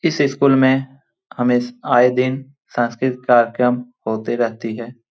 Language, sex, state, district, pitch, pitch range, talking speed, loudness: Hindi, male, Jharkhand, Jamtara, 125 Hz, 120-135 Hz, 130 wpm, -18 LUFS